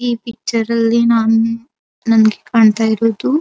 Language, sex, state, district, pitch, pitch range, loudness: Kannada, female, Karnataka, Dharwad, 230 Hz, 225-235 Hz, -14 LUFS